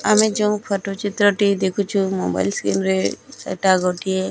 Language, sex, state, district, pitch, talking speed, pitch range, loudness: Odia, male, Odisha, Nuapada, 190 Hz, 155 wpm, 180-205 Hz, -20 LUFS